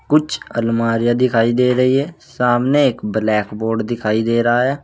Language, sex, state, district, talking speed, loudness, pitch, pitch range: Hindi, male, Uttar Pradesh, Saharanpur, 160 wpm, -17 LUFS, 120 Hz, 115-125 Hz